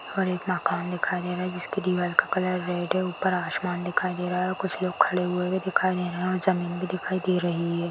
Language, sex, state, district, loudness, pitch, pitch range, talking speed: Hindi, female, Maharashtra, Chandrapur, -27 LUFS, 180 Hz, 180-185 Hz, 265 wpm